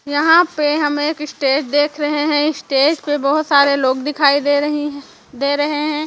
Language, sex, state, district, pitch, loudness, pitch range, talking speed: Hindi, female, Chhattisgarh, Raipur, 290 Hz, -16 LUFS, 285-300 Hz, 190 wpm